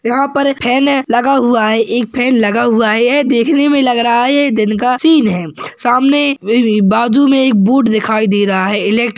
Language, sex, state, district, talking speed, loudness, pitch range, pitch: Hindi, male, Maharashtra, Solapur, 230 wpm, -11 LUFS, 220-270 Hz, 240 Hz